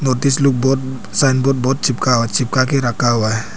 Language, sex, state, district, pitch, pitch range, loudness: Hindi, male, Arunachal Pradesh, Papum Pare, 130 Hz, 120-135 Hz, -16 LUFS